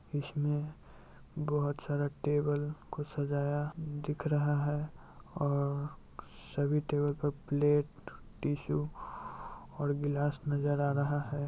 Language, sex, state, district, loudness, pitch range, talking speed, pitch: Hindi, male, Bihar, Darbhanga, -34 LUFS, 145-150 Hz, 110 wpm, 145 Hz